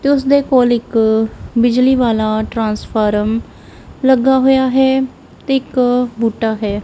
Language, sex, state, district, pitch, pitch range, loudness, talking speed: Punjabi, male, Punjab, Kapurthala, 245 Hz, 220-265 Hz, -14 LUFS, 125 wpm